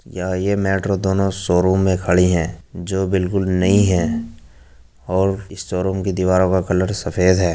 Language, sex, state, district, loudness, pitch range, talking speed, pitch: Hindi, male, Uttar Pradesh, Jyotiba Phule Nagar, -18 LUFS, 90-95 Hz, 165 wpm, 95 Hz